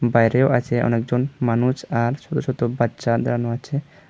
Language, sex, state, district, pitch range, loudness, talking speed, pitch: Bengali, male, Tripura, Unakoti, 120-135 Hz, -21 LUFS, 145 wpm, 120 Hz